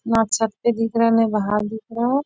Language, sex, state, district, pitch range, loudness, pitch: Hindi, female, Bihar, Bhagalpur, 220-230 Hz, -20 LUFS, 225 Hz